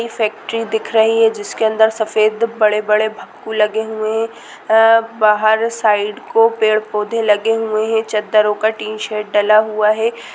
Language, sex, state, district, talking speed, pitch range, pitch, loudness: Hindi, female, Bihar, Darbhanga, 160 wpm, 215-225 Hz, 220 Hz, -15 LUFS